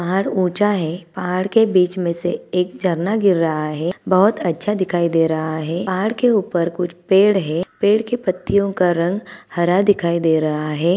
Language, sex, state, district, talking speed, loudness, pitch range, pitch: Hindi, female, Chhattisgarh, Bilaspur, 190 wpm, -18 LUFS, 170-195 Hz, 180 Hz